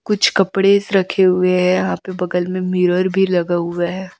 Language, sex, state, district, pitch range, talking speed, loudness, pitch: Hindi, female, Chhattisgarh, Raipur, 180-195 Hz, 215 wpm, -16 LUFS, 185 Hz